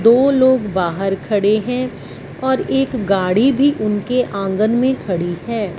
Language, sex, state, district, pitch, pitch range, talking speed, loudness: Hindi, female, Punjab, Fazilka, 220 Hz, 195-255 Hz, 145 wpm, -17 LUFS